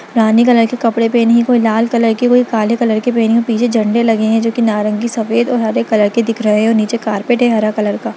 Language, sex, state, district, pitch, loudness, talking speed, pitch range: Hindi, female, Bihar, Lakhisarai, 230 Hz, -13 LUFS, 270 wpm, 220-235 Hz